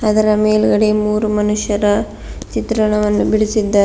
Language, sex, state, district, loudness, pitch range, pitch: Kannada, female, Karnataka, Bidar, -15 LUFS, 205-215 Hz, 210 Hz